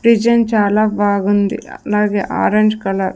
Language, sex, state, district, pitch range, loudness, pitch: Telugu, female, Andhra Pradesh, Sri Satya Sai, 200-215 Hz, -15 LUFS, 210 Hz